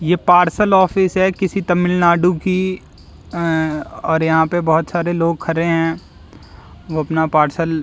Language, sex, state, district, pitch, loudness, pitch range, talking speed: Hindi, male, Delhi, New Delhi, 165 Hz, -16 LUFS, 160-180 Hz, 145 wpm